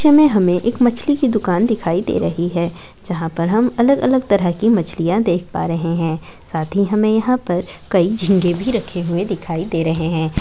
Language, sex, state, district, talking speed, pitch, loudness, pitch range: Hindi, female, Maharashtra, Pune, 220 wpm, 180 Hz, -17 LUFS, 170-225 Hz